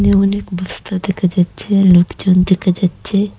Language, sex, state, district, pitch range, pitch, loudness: Bengali, female, Assam, Hailakandi, 180-200 Hz, 190 Hz, -15 LUFS